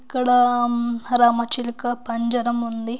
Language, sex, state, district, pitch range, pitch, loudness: Telugu, female, Andhra Pradesh, Anantapur, 235-245 Hz, 240 Hz, -20 LUFS